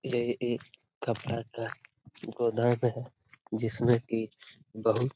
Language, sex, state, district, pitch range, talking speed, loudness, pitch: Hindi, male, Jharkhand, Jamtara, 115-120 Hz, 105 wpm, -31 LUFS, 120 Hz